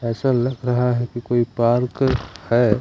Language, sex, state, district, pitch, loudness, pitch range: Hindi, male, Madhya Pradesh, Umaria, 120 Hz, -20 LUFS, 115-125 Hz